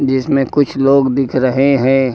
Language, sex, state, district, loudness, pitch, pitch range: Hindi, male, Uttar Pradesh, Lucknow, -13 LUFS, 135 Hz, 130-140 Hz